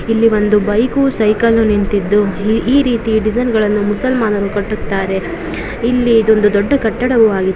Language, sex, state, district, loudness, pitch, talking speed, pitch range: Kannada, female, Karnataka, Bijapur, -14 LUFS, 215 Hz, 145 wpm, 205-230 Hz